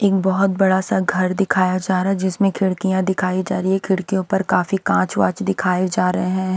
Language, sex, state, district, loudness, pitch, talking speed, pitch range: Hindi, female, Himachal Pradesh, Shimla, -19 LUFS, 190 Hz, 210 wpm, 185-195 Hz